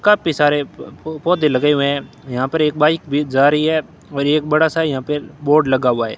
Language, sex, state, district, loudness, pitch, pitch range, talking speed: Hindi, male, Rajasthan, Bikaner, -17 LUFS, 150 Hz, 140-155 Hz, 250 wpm